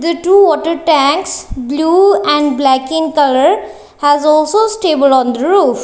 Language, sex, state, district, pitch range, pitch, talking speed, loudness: English, female, Punjab, Kapurthala, 285-345 Hz, 310 Hz, 155 wpm, -11 LUFS